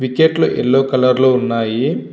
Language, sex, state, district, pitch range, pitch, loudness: Telugu, male, Andhra Pradesh, Visakhapatnam, 120-135 Hz, 130 Hz, -14 LUFS